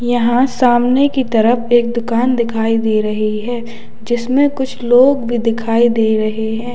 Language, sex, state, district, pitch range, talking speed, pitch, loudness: Hindi, male, Uttar Pradesh, Lalitpur, 225-245 Hz, 160 wpm, 235 Hz, -14 LUFS